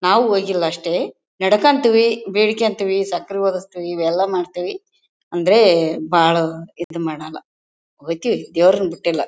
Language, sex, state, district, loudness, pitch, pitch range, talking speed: Kannada, female, Karnataka, Bellary, -18 LUFS, 180 Hz, 165-195 Hz, 105 wpm